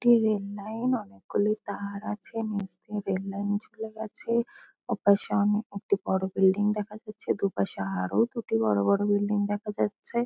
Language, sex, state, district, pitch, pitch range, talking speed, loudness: Bengali, female, West Bengal, Kolkata, 205 Hz, 195-220 Hz, 145 wpm, -28 LUFS